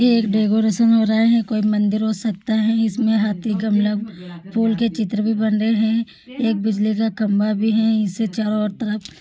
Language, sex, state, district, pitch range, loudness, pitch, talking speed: Hindi, female, Rajasthan, Churu, 210-225 Hz, -19 LUFS, 220 Hz, 210 wpm